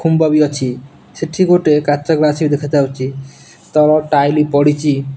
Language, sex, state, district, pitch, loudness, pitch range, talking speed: Odia, male, Odisha, Nuapada, 150 Hz, -14 LUFS, 140-155 Hz, 150 wpm